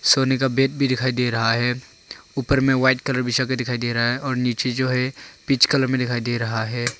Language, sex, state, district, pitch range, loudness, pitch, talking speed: Hindi, male, Arunachal Pradesh, Longding, 120-130 Hz, -21 LUFS, 125 Hz, 230 wpm